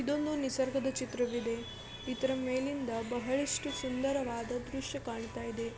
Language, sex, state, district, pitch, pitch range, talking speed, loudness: Kannada, female, Karnataka, Belgaum, 255 Hz, 235-270 Hz, 95 wpm, -35 LUFS